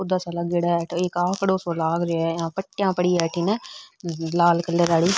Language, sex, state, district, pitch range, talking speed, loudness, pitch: Marwari, female, Rajasthan, Nagaur, 170-190 Hz, 220 wpm, -23 LUFS, 175 Hz